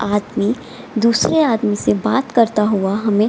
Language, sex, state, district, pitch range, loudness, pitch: Hindi, female, Bihar, Gaya, 205-235 Hz, -17 LUFS, 220 Hz